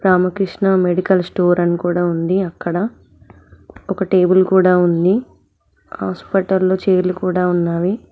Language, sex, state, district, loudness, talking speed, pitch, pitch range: Telugu, female, Telangana, Mahabubabad, -16 LUFS, 120 wpm, 180 Hz, 175-190 Hz